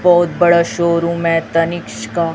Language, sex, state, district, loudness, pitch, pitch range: Hindi, female, Chhattisgarh, Raipur, -15 LUFS, 170 Hz, 165-175 Hz